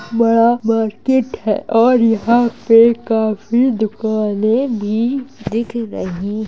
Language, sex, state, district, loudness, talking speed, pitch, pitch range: Hindi, male, Uttar Pradesh, Jalaun, -15 LUFS, 110 wpm, 230 Hz, 220-235 Hz